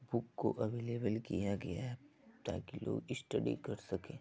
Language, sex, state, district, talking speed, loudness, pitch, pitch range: Hindi, female, Bihar, Begusarai, 155 wpm, -40 LUFS, 115 Hz, 105-120 Hz